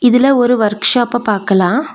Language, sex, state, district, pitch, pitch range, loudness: Tamil, female, Tamil Nadu, Nilgiris, 240 Hz, 210-250 Hz, -13 LUFS